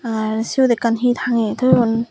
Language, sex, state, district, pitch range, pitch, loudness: Chakma, female, Tripura, Dhalai, 225-245 Hz, 235 Hz, -17 LUFS